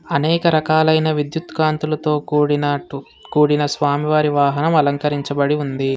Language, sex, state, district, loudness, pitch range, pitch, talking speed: Telugu, male, Telangana, Hyderabad, -18 LUFS, 145-155 Hz, 150 Hz, 100 wpm